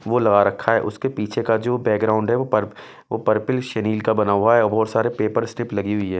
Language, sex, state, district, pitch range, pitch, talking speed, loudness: Hindi, male, Bihar, West Champaran, 105-120 Hz, 110 Hz, 260 wpm, -20 LUFS